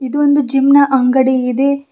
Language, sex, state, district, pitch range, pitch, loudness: Kannada, female, Karnataka, Bidar, 260-280 Hz, 275 Hz, -12 LUFS